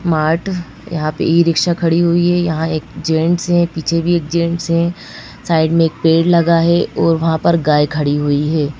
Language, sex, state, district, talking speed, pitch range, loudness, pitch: Hindi, female, Madhya Pradesh, Bhopal, 205 wpm, 160-170 Hz, -15 LUFS, 165 Hz